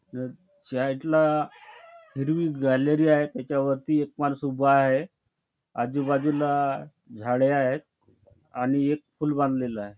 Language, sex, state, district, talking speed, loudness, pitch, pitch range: Marathi, male, Maharashtra, Chandrapur, 110 wpm, -25 LUFS, 140 Hz, 130-150 Hz